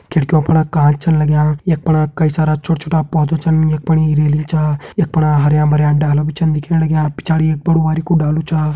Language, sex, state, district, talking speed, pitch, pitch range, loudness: Hindi, male, Uttarakhand, Uttarkashi, 220 wpm, 155 Hz, 150-160 Hz, -14 LUFS